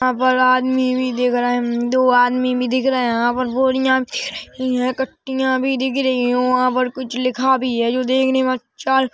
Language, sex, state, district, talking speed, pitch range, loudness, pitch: Hindi, female, Chhattisgarh, Rajnandgaon, 230 wpm, 250-260 Hz, -18 LUFS, 255 Hz